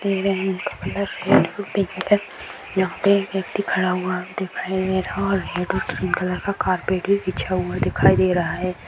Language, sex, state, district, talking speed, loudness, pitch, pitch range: Hindi, female, Maharashtra, Nagpur, 150 wpm, -22 LUFS, 190 Hz, 180-195 Hz